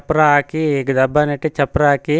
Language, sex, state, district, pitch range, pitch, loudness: Kannada, male, Karnataka, Chamarajanagar, 140-155 Hz, 145 Hz, -16 LUFS